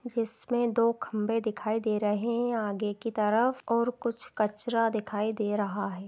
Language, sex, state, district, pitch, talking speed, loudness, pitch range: Hindi, female, Chhattisgarh, Kabirdham, 220 Hz, 170 wpm, -29 LUFS, 210-235 Hz